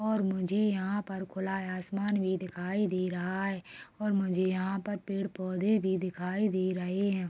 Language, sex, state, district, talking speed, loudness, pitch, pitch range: Hindi, female, Chhattisgarh, Rajnandgaon, 165 wpm, -32 LUFS, 190 Hz, 185-200 Hz